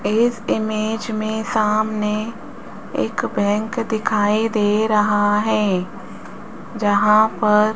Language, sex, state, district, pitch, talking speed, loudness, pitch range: Hindi, female, Rajasthan, Jaipur, 215 Hz, 100 wpm, -19 LUFS, 210-220 Hz